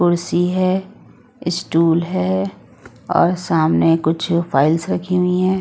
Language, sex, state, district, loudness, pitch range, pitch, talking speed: Hindi, female, Odisha, Sambalpur, -18 LUFS, 160-180 Hz, 170 Hz, 115 wpm